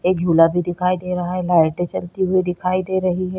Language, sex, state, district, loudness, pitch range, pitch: Hindi, female, Chhattisgarh, Korba, -19 LUFS, 175-185 Hz, 180 Hz